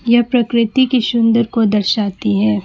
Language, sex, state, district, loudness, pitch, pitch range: Hindi, female, West Bengal, Alipurduar, -15 LUFS, 230 Hz, 210-240 Hz